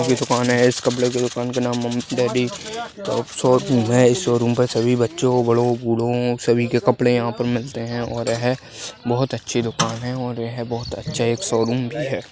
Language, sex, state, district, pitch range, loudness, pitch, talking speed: Hindi, male, Maharashtra, Nagpur, 120-125 Hz, -20 LUFS, 120 Hz, 210 wpm